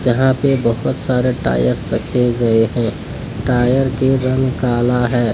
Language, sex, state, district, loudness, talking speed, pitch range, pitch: Hindi, male, Jharkhand, Deoghar, -16 LUFS, 145 wpm, 115-130 Hz, 125 Hz